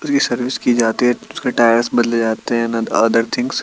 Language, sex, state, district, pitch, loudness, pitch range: Hindi, male, Chandigarh, Chandigarh, 120 Hz, -16 LUFS, 115-125 Hz